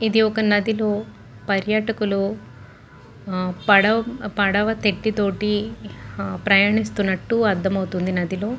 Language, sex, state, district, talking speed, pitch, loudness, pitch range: Telugu, female, Andhra Pradesh, Guntur, 75 wpm, 205 Hz, -21 LUFS, 190-215 Hz